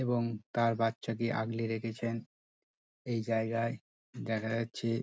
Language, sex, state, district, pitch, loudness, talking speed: Bengali, male, West Bengal, Dakshin Dinajpur, 115 Hz, -34 LUFS, 120 wpm